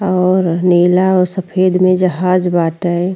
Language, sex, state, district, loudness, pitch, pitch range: Bhojpuri, female, Uttar Pradesh, Ghazipur, -13 LUFS, 180 Hz, 175-185 Hz